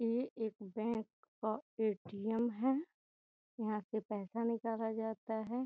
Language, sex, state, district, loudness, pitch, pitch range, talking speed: Hindi, female, Bihar, Gopalganj, -39 LUFS, 225 Hz, 215-230 Hz, 125 wpm